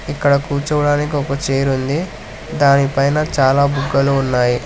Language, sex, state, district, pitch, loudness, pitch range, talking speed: Telugu, male, Telangana, Hyderabad, 140 Hz, -16 LUFS, 135-145 Hz, 115 wpm